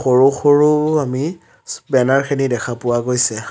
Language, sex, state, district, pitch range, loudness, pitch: Assamese, male, Assam, Sonitpur, 125-145 Hz, -16 LUFS, 135 Hz